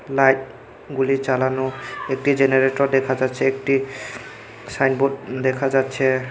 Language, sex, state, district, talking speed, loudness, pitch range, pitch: Bengali, male, Tripura, Unakoti, 105 wpm, -20 LUFS, 130-135 Hz, 135 Hz